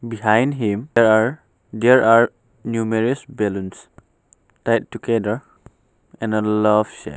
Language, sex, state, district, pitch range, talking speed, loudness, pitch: English, male, Arunachal Pradesh, Papum Pare, 105-115 Hz, 110 wpm, -19 LUFS, 110 Hz